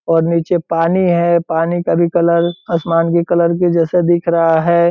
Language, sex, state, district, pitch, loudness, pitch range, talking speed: Hindi, male, Bihar, Purnia, 170 Hz, -14 LUFS, 165-175 Hz, 195 wpm